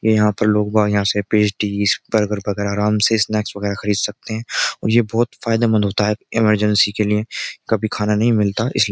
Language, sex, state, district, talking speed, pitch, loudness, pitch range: Hindi, male, Uttar Pradesh, Jyotiba Phule Nagar, 210 wpm, 105 Hz, -18 LUFS, 105-110 Hz